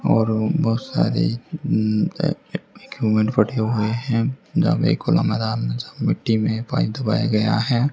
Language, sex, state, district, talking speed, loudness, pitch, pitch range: Hindi, male, Haryana, Charkhi Dadri, 145 wpm, -21 LUFS, 110 Hz, 110-120 Hz